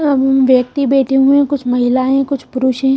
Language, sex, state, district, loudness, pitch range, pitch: Hindi, female, Punjab, Kapurthala, -13 LUFS, 260-275 Hz, 270 Hz